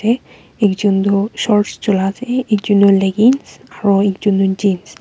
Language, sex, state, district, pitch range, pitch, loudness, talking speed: Nagamese, female, Nagaland, Kohima, 195-210 Hz, 200 Hz, -15 LUFS, 170 wpm